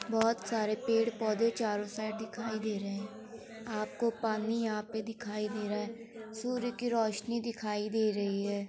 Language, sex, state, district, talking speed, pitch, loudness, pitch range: Hindi, female, Uttar Pradesh, Muzaffarnagar, 170 wpm, 220 Hz, -34 LUFS, 215-230 Hz